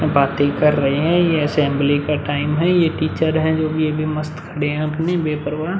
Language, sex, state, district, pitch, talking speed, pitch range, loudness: Hindi, male, Uttar Pradesh, Muzaffarnagar, 155 Hz, 205 wpm, 145-160 Hz, -18 LUFS